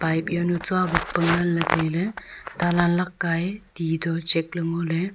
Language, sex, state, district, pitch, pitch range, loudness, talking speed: Wancho, female, Arunachal Pradesh, Longding, 175 Hz, 165-180 Hz, -24 LUFS, 200 wpm